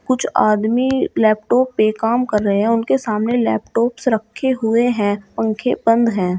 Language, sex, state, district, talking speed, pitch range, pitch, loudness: Hindi, female, Uttar Pradesh, Shamli, 160 wpm, 215-245 Hz, 225 Hz, -17 LUFS